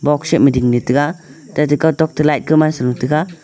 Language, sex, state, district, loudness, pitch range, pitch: Wancho, male, Arunachal Pradesh, Longding, -15 LUFS, 135-155 Hz, 150 Hz